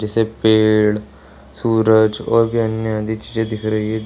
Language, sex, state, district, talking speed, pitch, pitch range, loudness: Hindi, male, Bihar, Samastipur, 160 wpm, 110 Hz, 105-110 Hz, -17 LUFS